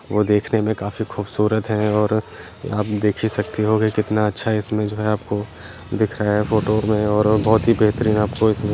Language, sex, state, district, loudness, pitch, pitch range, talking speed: Kumaoni, male, Uttarakhand, Uttarkashi, -20 LUFS, 105 Hz, 105-110 Hz, 205 wpm